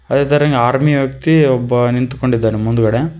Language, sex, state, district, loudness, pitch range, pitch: Kannada, male, Karnataka, Koppal, -14 LUFS, 120-145 Hz, 130 Hz